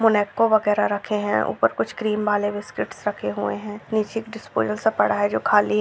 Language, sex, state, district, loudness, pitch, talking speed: Hindi, male, Maharashtra, Solapur, -22 LUFS, 205 Hz, 205 wpm